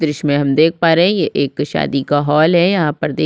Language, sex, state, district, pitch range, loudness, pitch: Hindi, female, Chhattisgarh, Sukma, 145-165 Hz, -14 LUFS, 150 Hz